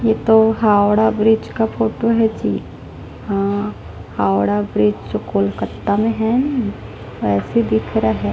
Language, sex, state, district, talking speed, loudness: Hindi, female, Chhattisgarh, Jashpur, 135 wpm, -17 LUFS